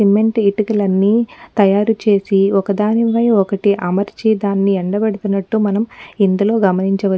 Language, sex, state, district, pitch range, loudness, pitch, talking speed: Telugu, female, Telangana, Nalgonda, 195-220 Hz, -15 LUFS, 205 Hz, 110 wpm